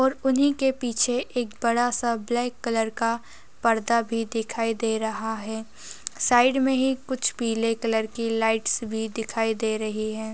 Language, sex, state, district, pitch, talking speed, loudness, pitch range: Hindi, female, Chhattisgarh, Rajnandgaon, 230 Hz, 170 wpm, -25 LUFS, 225-245 Hz